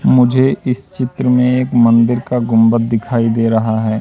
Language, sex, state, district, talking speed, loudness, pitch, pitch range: Hindi, male, Madhya Pradesh, Katni, 180 wpm, -13 LUFS, 120 Hz, 115-125 Hz